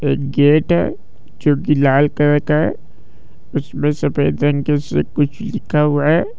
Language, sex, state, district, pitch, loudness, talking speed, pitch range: Hindi, male, Jharkhand, Jamtara, 145 Hz, -16 LUFS, 160 wpm, 140-150 Hz